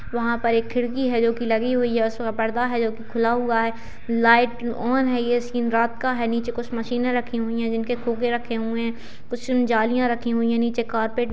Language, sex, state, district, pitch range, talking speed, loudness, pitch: Hindi, female, Bihar, Jahanabad, 230-245 Hz, 245 wpm, -23 LUFS, 235 Hz